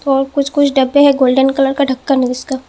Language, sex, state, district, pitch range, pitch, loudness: Hindi, female, Assam, Hailakandi, 265-280 Hz, 270 Hz, -13 LUFS